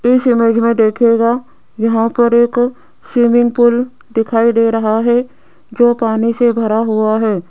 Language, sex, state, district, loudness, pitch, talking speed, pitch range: Hindi, female, Rajasthan, Jaipur, -13 LUFS, 230 Hz, 150 wpm, 225-240 Hz